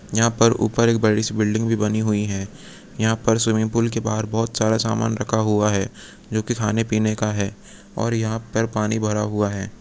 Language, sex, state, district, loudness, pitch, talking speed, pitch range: Hindi, male, Uttar Pradesh, Muzaffarnagar, -21 LUFS, 110 Hz, 215 wpm, 105-115 Hz